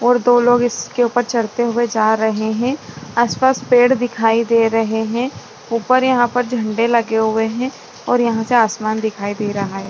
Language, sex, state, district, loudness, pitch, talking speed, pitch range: Hindi, female, Chhattisgarh, Rajnandgaon, -17 LUFS, 235 Hz, 190 wpm, 220-245 Hz